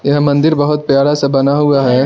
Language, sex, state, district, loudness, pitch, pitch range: Hindi, male, Arunachal Pradesh, Lower Dibang Valley, -12 LUFS, 145 Hz, 140-145 Hz